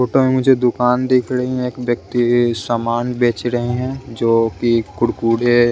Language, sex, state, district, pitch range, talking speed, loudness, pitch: Hindi, male, Bihar, West Champaran, 120-125 Hz, 165 wpm, -17 LUFS, 120 Hz